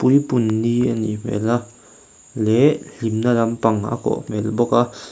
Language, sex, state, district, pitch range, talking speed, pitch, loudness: Mizo, male, Mizoram, Aizawl, 110-120 Hz, 150 wpm, 115 Hz, -19 LUFS